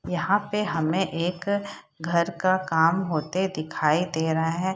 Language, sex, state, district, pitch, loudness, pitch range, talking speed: Hindi, female, Bihar, Saharsa, 170 Hz, -25 LUFS, 160-190 Hz, 150 wpm